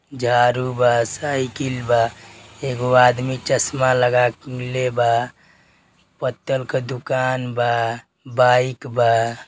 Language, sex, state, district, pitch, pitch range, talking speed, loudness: Bhojpuri, male, Uttar Pradesh, Deoria, 125 Hz, 120-130 Hz, 110 wpm, -19 LUFS